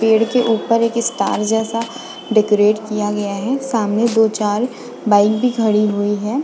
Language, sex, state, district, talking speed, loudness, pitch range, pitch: Hindi, female, Goa, North and South Goa, 170 wpm, -17 LUFS, 210-230 Hz, 220 Hz